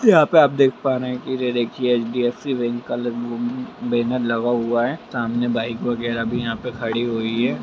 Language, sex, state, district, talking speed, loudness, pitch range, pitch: Hindi, male, Bihar, Jamui, 190 wpm, -21 LUFS, 120-130 Hz, 120 Hz